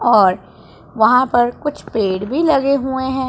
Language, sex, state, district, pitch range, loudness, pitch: Hindi, female, Punjab, Pathankot, 220-270 Hz, -16 LUFS, 250 Hz